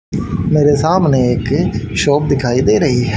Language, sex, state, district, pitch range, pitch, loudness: Hindi, male, Haryana, Charkhi Dadri, 120-145 Hz, 130 Hz, -14 LUFS